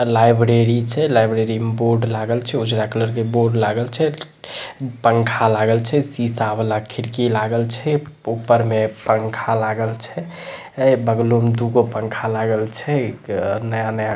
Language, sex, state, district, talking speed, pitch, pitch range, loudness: Maithili, male, Bihar, Samastipur, 155 wpm, 115 Hz, 110-120 Hz, -19 LUFS